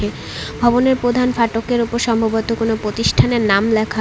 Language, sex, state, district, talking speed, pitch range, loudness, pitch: Bengali, female, West Bengal, Cooch Behar, 135 wpm, 220-240 Hz, -17 LUFS, 230 Hz